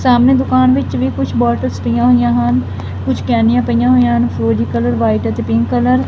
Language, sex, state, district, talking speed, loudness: Punjabi, female, Punjab, Fazilka, 205 wpm, -14 LUFS